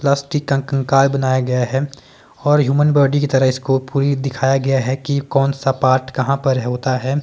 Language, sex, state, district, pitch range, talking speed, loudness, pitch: Hindi, male, Himachal Pradesh, Shimla, 130-140 Hz, 200 wpm, -17 LUFS, 135 Hz